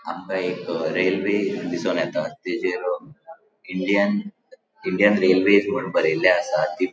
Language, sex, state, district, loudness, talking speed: Konkani, male, Goa, North and South Goa, -22 LUFS, 130 wpm